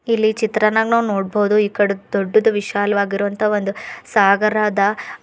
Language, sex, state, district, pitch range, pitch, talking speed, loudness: Kannada, female, Karnataka, Bidar, 200-215 Hz, 210 Hz, 125 wpm, -17 LUFS